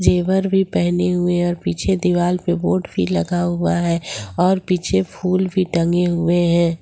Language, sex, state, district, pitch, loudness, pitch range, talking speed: Hindi, female, Jharkhand, Ranchi, 175 Hz, -18 LUFS, 170-180 Hz, 175 wpm